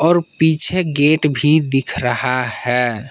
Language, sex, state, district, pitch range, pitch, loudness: Hindi, male, Jharkhand, Palamu, 125-160 Hz, 145 Hz, -16 LUFS